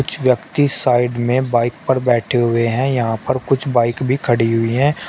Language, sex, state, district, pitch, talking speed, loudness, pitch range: Hindi, male, Uttar Pradesh, Shamli, 125 Hz, 200 wpm, -17 LUFS, 120-130 Hz